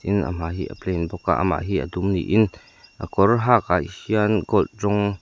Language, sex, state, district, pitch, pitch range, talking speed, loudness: Mizo, male, Mizoram, Aizawl, 95 Hz, 90-105 Hz, 220 wpm, -22 LUFS